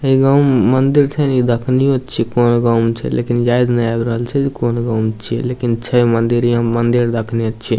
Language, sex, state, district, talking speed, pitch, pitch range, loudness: Maithili, male, Bihar, Samastipur, 210 wpm, 120 Hz, 115-130 Hz, -15 LUFS